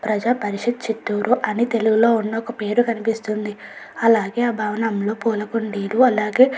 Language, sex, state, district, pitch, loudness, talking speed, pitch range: Telugu, female, Andhra Pradesh, Chittoor, 225 Hz, -20 LUFS, 120 wpm, 215-235 Hz